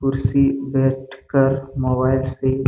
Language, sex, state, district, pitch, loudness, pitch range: Hindi, male, Chhattisgarh, Bastar, 135 Hz, -19 LUFS, 130-135 Hz